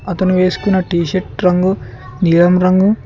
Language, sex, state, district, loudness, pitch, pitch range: Telugu, male, Telangana, Mahabubabad, -14 LUFS, 185 Hz, 175-185 Hz